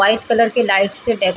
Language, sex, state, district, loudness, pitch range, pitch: Hindi, female, Bihar, Darbhanga, -14 LUFS, 195-230 Hz, 215 Hz